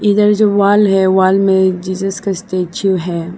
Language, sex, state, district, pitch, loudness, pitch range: Hindi, female, Arunachal Pradesh, Lower Dibang Valley, 195 Hz, -13 LUFS, 185-200 Hz